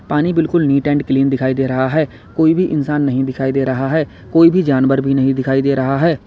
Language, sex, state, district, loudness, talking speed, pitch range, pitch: Hindi, male, Uttar Pradesh, Lalitpur, -15 LUFS, 250 wpm, 130-155 Hz, 135 Hz